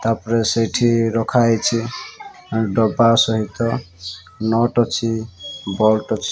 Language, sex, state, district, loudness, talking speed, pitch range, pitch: Odia, male, Odisha, Malkangiri, -18 LUFS, 95 wpm, 110-115 Hz, 115 Hz